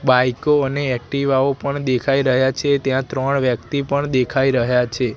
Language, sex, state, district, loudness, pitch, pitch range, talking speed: Gujarati, male, Gujarat, Gandhinagar, -18 LUFS, 135 Hz, 125-140 Hz, 160 wpm